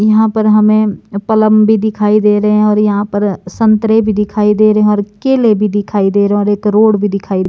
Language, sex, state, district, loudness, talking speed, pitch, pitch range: Hindi, male, Himachal Pradesh, Shimla, -11 LUFS, 240 wpm, 210 Hz, 205-215 Hz